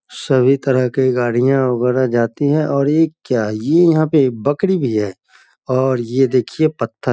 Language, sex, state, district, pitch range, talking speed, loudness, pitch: Hindi, male, Bihar, Sitamarhi, 125-145 Hz, 185 wpm, -16 LUFS, 130 Hz